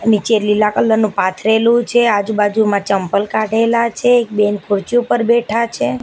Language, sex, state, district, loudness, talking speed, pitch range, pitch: Gujarati, female, Gujarat, Gandhinagar, -15 LUFS, 160 wpm, 205-230 Hz, 220 Hz